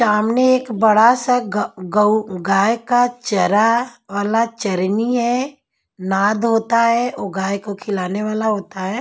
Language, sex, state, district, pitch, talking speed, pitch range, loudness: Hindi, female, Bihar, Patna, 220 Hz, 145 wpm, 200-240 Hz, -17 LUFS